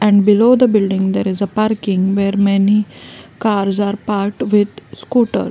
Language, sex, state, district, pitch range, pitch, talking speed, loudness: English, female, Gujarat, Valsad, 200-215 Hz, 205 Hz, 165 wpm, -15 LUFS